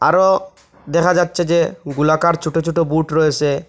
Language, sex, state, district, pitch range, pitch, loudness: Bengali, male, Assam, Hailakandi, 155-175 Hz, 165 Hz, -16 LUFS